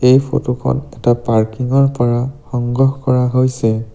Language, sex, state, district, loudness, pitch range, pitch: Assamese, male, Assam, Sonitpur, -16 LUFS, 120-130 Hz, 125 Hz